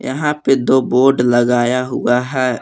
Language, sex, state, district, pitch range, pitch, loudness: Hindi, male, Jharkhand, Palamu, 125-130 Hz, 125 Hz, -15 LUFS